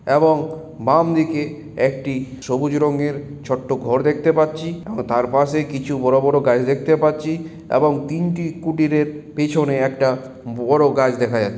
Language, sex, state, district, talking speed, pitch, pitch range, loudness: Bengali, male, West Bengal, Malda, 150 wpm, 145 Hz, 130-155 Hz, -19 LUFS